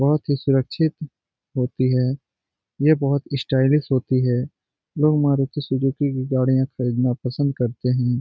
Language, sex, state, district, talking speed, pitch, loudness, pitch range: Hindi, male, Bihar, Jamui, 140 wpm, 130 Hz, -21 LUFS, 125-140 Hz